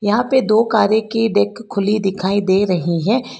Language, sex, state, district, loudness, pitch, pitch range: Hindi, female, Karnataka, Bangalore, -17 LUFS, 210 Hz, 195-225 Hz